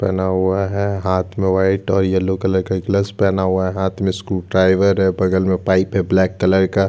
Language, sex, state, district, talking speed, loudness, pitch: Hindi, male, Chhattisgarh, Jashpur, 225 wpm, -17 LUFS, 95 Hz